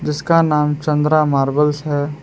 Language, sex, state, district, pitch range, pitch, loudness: Hindi, male, Jharkhand, Palamu, 145-150 Hz, 150 Hz, -16 LUFS